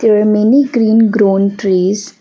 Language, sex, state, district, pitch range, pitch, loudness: English, female, Assam, Kamrup Metropolitan, 200-225 Hz, 210 Hz, -11 LUFS